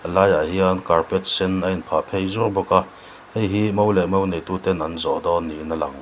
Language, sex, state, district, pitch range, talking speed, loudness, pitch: Mizo, male, Mizoram, Aizawl, 85-95 Hz, 210 wpm, -21 LUFS, 95 Hz